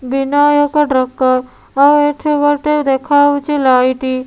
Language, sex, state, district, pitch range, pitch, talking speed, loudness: Odia, female, Odisha, Nuapada, 260-290 Hz, 285 Hz, 110 wpm, -13 LUFS